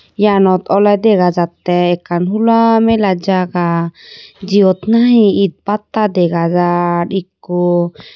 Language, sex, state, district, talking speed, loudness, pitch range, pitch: Chakma, female, Tripura, Unakoti, 110 wpm, -13 LUFS, 175-210 Hz, 185 Hz